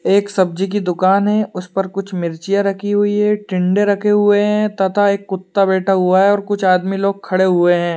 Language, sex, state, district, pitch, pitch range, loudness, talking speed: Hindi, male, Uttar Pradesh, Hamirpur, 195 Hz, 185-205 Hz, -16 LUFS, 220 wpm